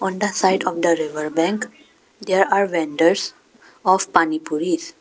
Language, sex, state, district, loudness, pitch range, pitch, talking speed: English, female, Arunachal Pradesh, Papum Pare, -20 LUFS, 165-200 Hz, 185 Hz, 145 wpm